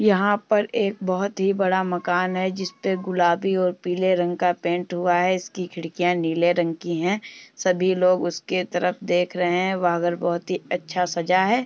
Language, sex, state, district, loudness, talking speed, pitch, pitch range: Hindi, female, Uttar Pradesh, Muzaffarnagar, -23 LUFS, 195 wpm, 180 Hz, 175-190 Hz